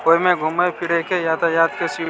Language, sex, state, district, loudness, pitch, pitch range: Maithili, male, Bihar, Samastipur, -19 LUFS, 170 Hz, 165-175 Hz